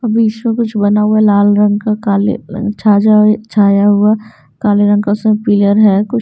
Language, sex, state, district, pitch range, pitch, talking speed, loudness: Hindi, female, Bihar, Patna, 205-215 Hz, 210 Hz, 195 wpm, -11 LUFS